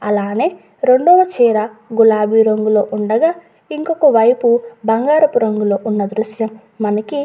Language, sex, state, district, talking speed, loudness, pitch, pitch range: Telugu, female, Andhra Pradesh, Guntur, 105 wpm, -15 LUFS, 225 Hz, 215-260 Hz